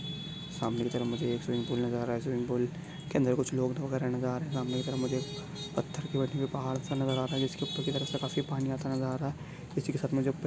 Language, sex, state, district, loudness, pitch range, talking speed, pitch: Hindi, male, Maharashtra, Pune, -33 LUFS, 125-145 Hz, 285 wpm, 135 Hz